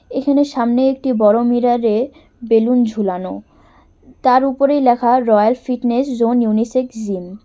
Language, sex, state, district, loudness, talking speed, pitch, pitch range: Bengali, male, West Bengal, Cooch Behar, -16 LUFS, 135 wpm, 240 Hz, 215-255 Hz